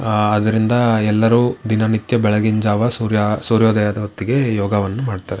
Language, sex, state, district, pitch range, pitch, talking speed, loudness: Kannada, male, Karnataka, Shimoga, 105-115 Hz, 110 Hz, 120 wpm, -17 LUFS